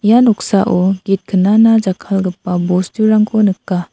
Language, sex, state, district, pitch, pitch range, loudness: Garo, female, Meghalaya, South Garo Hills, 195 Hz, 185-215 Hz, -13 LUFS